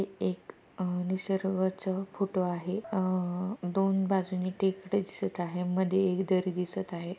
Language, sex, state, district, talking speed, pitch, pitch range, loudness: Marathi, female, Maharashtra, Pune, 135 wpm, 185 Hz, 180-195 Hz, -31 LUFS